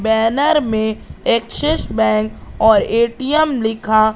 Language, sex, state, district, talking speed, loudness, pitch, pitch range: Hindi, female, Madhya Pradesh, Katni, 100 wpm, -16 LUFS, 220 Hz, 220-260 Hz